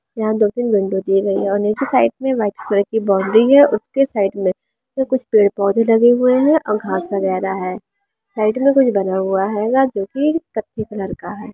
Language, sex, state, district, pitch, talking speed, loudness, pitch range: Hindi, female, Bihar, Sitamarhi, 215 Hz, 210 wpm, -17 LUFS, 195-255 Hz